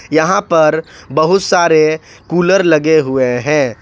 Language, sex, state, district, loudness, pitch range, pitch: Hindi, male, Jharkhand, Ranchi, -12 LUFS, 150-165 Hz, 155 Hz